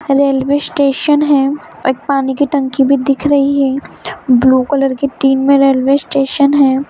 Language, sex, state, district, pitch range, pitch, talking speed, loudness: Hindi, female, Bihar, Saran, 270-285 Hz, 275 Hz, 155 wpm, -12 LUFS